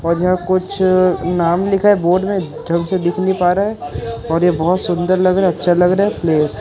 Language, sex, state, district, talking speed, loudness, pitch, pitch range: Hindi, female, Chhattisgarh, Raipur, 255 wpm, -15 LUFS, 180 Hz, 170-185 Hz